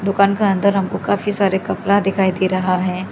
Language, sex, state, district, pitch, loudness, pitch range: Hindi, female, Arunachal Pradesh, Lower Dibang Valley, 195 Hz, -17 LUFS, 185-200 Hz